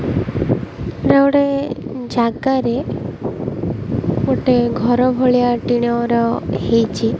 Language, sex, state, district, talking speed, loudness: Odia, female, Odisha, Malkangiri, 65 wpm, -17 LUFS